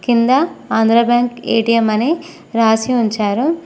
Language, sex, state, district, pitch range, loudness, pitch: Telugu, female, Telangana, Mahabubabad, 225-260 Hz, -15 LUFS, 235 Hz